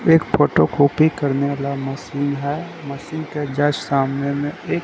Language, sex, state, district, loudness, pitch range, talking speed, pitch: Hindi, male, Bihar, Katihar, -20 LUFS, 140-155 Hz, 160 wpm, 145 Hz